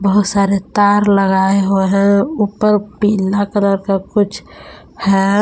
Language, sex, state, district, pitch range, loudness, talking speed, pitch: Hindi, female, Jharkhand, Palamu, 195-205 Hz, -14 LUFS, 135 wpm, 200 Hz